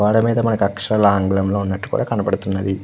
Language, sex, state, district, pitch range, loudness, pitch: Telugu, male, Andhra Pradesh, Krishna, 95-105 Hz, -18 LUFS, 100 Hz